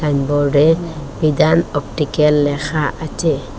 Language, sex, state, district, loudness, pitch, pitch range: Bengali, female, Assam, Hailakandi, -16 LUFS, 150 Hz, 145-155 Hz